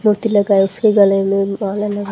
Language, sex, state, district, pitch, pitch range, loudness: Hindi, female, Haryana, Charkhi Dadri, 205 Hz, 195-210 Hz, -15 LUFS